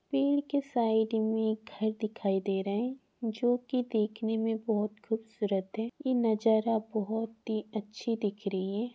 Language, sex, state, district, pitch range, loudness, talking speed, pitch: Hindi, female, Rajasthan, Churu, 215-230 Hz, -31 LUFS, 170 wpm, 220 Hz